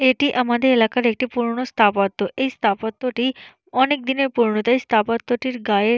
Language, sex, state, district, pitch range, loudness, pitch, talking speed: Bengali, female, West Bengal, Purulia, 220-260 Hz, -20 LUFS, 245 Hz, 160 wpm